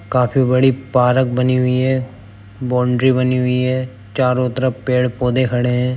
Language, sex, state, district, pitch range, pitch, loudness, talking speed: Hindi, male, Uttar Pradesh, Jyotiba Phule Nagar, 125-130 Hz, 125 Hz, -17 LUFS, 180 wpm